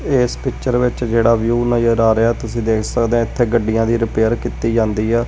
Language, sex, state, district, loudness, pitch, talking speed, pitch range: Punjabi, male, Punjab, Kapurthala, -17 LUFS, 115 Hz, 205 wpm, 115-120 Hz